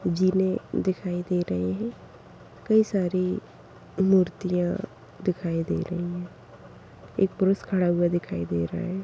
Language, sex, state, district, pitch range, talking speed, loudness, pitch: Kumaoni, female, Uttarakhand, Tehri Garhwal, 175-190 Hz, 120 wpm, -26 LUFS, 180 Hz